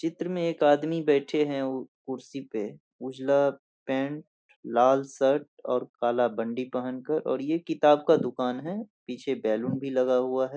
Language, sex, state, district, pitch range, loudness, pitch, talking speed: Hindi, male, Bihar, Saharsa, 125-150 Hz, -27 LUFS, 135 Hz, 165 wpm